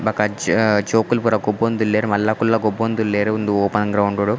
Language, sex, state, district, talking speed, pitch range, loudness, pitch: Tulu, male, Karnataka, Dakshina Kannada, 150 wpm, 105-110 Hz, -18 LUFS, 110 Hz